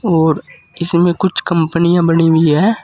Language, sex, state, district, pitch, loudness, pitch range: Hindi, male, Uttar Pradesh, Saharanpur, 170 Hz, -13 LUFS, 165-175 Hz